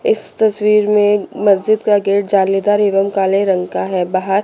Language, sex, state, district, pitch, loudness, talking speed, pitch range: Hindi, female, Chandigarh, Chandigarh, 200 Hz, -14 LUFS, 175 wpm, 195-210 Hz